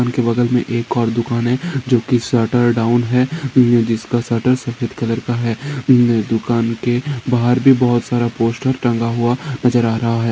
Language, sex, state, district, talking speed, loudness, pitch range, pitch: Hindi, male, Rajasthan, Nagaur, 185 wpm, -16 LUFS, 115-125 Hz, 120 Hz